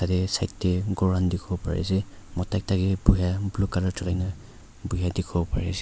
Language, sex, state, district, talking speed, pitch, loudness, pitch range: Nagamese, male, Nagaland, Kohima, 195 wpm, 95 Hz, -26 LUFS, 90-95 Hz